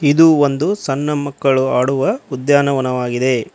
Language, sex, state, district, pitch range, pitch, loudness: Kannada, male, Karnataka, Koppal, 130-145 Hz, 140 Hz, -16 LUFS